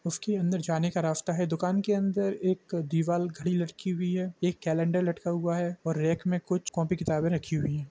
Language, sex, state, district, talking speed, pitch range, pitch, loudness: Hindi, male, Jharkhand, Sahebganj, 220 wpm, 165-180 Hz, 175 Hz, -29 LUFS